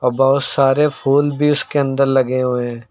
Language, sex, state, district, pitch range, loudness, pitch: Hindi, male, Uttar Pradesh, Lucknow, 130-145 Hz, -16 LUFS, 135 Hz